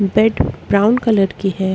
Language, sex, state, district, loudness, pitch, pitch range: Hindi, female, Chhattisgarh, Korba, -16 LUFS, 200 Hz, 195-220 Hz